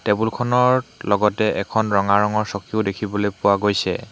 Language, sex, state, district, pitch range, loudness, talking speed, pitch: Assamese, male, Assam, Hailakandi, 100-110 Hz, -20 LUFS, 130 wpm, 105 Hz